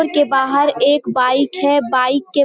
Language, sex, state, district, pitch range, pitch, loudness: Hindi, female, Bihar, Jamui, 265-290 Hz, 280 Hz, -15 LUFS